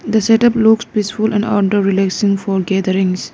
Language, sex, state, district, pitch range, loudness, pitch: English, female, Arunachal Pradesh, Lower Dibang Valley, 195-220 Hz, -15 LUFS, 205 Hz